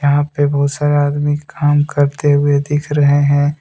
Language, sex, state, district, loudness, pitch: Hindi, male, Jharkhand, Deoghar, -15 LUFS, 145 Hz